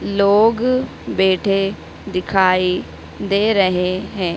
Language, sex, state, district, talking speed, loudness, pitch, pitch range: Hindi, female, Madhya Pradesh, Dhar, 80 wpm, -17 LUFS, 195 Hz, 185-205 Hz